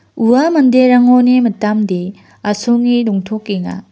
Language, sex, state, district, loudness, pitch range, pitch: Garo, female, Meghalaya, West Garo Hills, -12 LUFS, 200-250 Hz, 230 Hz